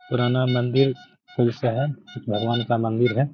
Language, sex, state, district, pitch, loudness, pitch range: Hindi, male, Bihar, Gaya, 125 Hz, -23 LUFS, 120-135 Hz